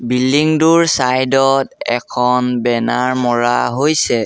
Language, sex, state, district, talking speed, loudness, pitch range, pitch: Assamese, male, Assam, Sonitpur, 115 wpm, -14 LUFS, 120-135 Hz, 125 Hz